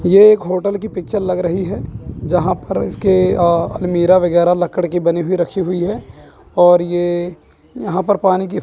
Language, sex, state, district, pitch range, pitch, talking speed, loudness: Hindi, male, Chandigarh, Chandigarh, 175-190 Hz, 180 Hz, 190 wpm, -15 LUFS